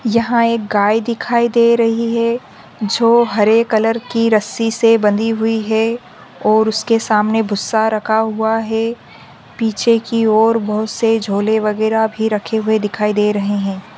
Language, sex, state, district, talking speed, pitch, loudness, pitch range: Hindi, female, Rajasthan, Nagaur, 160 wpm, 220 Hz, -15 LUFS, 215-230 Hz